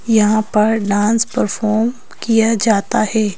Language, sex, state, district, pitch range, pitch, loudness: Hindi, female, Madhya Pradesh, Bhopal, 210-225 Hz, 220 Hz, -15 LUFS